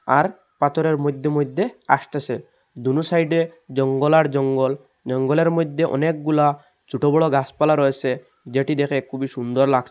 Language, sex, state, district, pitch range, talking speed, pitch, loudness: Bengali, male, Assam, Hailakandi, 135-160 Hz, 135 wpm, 145 Hz, -21 LUFS